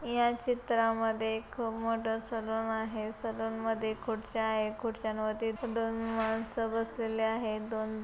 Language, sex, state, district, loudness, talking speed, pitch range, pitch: Marathi, female, Maharashtra, Chandrapur, -33 LUFS, 120 wpm, 220-225 Hz, 225 Hz